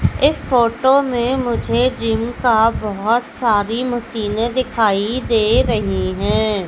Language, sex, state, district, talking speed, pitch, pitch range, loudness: Hindi, female, Madhya Pradesh, Katni, 115 wpm, 230 Hz, 215-245 Hz, -17 LUFS